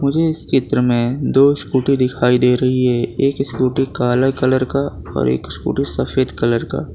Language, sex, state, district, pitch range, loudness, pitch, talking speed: Hindi, male, Gujarat, Valsad, 125-135 Hz, -17 LUFS, 130 Hz, 175 wpm